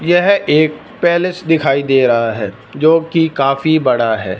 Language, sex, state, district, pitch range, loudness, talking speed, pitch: Hindi, male, Punjab, Fazilka, 130-165 Hz, -14 LUFS, 165 wpm, 155 Hz